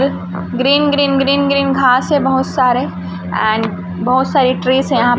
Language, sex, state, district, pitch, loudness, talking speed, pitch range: Hindi, female, Chhattisgarh, Raipur, 255 Hz, -14 LUFS, 185 wpm, 200-275 Hz